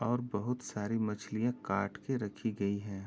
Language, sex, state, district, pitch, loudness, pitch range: Hindi, male, Uttar Pradesh, Jyotiba Phule Nagar, 105 Hz, -36 LUFS, 100-120 Hz